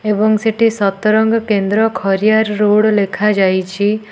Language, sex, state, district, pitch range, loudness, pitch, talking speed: Odia, female, Odisha, Nuapada, 200-220 Hz, -14 LUFS, 210 Hz, 100 wpm